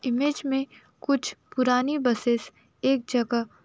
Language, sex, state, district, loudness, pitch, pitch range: Hindi, female, Uttar Pradesh, Jalaun, -26 LUFS, 255 Hz, 240-275 Hz